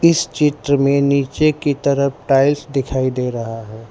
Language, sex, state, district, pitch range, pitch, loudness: Hindi, male, Gujarat, Valsad, 130-145 Hz, 140 Hz, -17 LUFS